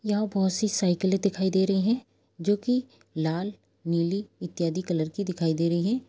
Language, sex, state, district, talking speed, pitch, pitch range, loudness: Hindi, female, Bihar, Gopalganj, 175 wpm, 190 Hz, 170-205 Hz, -27 LUFS